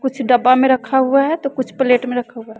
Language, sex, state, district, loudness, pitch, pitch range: Hindi, female, Bihar, West Champaran, -16 LUFS, 260 Hz, 245-265 Hz